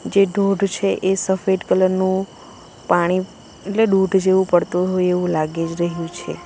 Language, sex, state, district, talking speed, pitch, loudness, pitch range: Gujarati, female, Gujarat, Valsad, 165 wpm, 185 Hz, -19 LUFS, 175-195 Hz